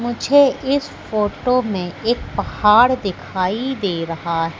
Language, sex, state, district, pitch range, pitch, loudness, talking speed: Hindi, female, Madhya Pradesh, Katni, 185-255 Hz, 215 Hz, -18 LUFS, 130 wpm